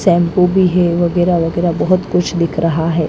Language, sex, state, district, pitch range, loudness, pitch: Hindi, female, Maharashtra, Mumbai Suburban, 165-180 Hz, -14 LUFS, 175 Hz